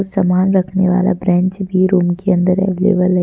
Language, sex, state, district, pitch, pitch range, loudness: Hindi, female, Jharkhand, Deoghar, 185 Hz, 180-190 Hz, -14 LUFS